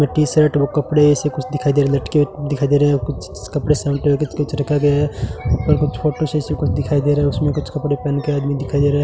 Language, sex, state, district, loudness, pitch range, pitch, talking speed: Hindi, male, Rajasthan, Bikaner, -18 LUFS, 140-150 Hz, 145 Hz, 285 wpm